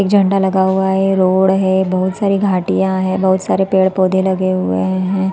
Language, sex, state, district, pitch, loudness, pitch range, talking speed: Hindi, female, Chhattisgarh, Balrampur, 190 Hz, -14 LUFS, 185-190 Hz, 215 wpm